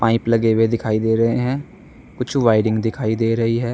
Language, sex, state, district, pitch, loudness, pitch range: Hindi, male, Uttar Pradesh, Saharanpur, 115 Hz, -19 LUFS, 110-120 Hz